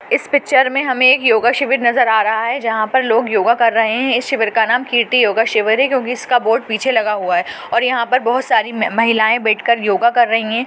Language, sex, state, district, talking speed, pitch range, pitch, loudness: Hindi, female, Chhattisgarh, Bastar, 255 wpm, 220-255 Hz, 235 Hz, -14 LUFS